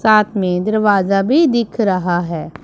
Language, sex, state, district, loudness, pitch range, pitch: Hindi, female, Punjab, Pathankot, -15 LUFS, 185-220 Hz, 205 Hz